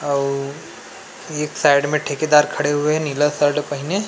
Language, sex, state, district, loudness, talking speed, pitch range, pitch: Chhattisgarhi, male, Chhattisgarh, Rajnandgaon, -19 LUFS, 175 wpm, 145-150 Hz, 145 Hz